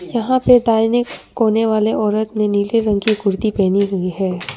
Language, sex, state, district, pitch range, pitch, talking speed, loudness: Hindi, female, Arunachal Pradesh, Papum Pare, 200-230 Hz, 215 Hz, 185 wpm, -16 LUFS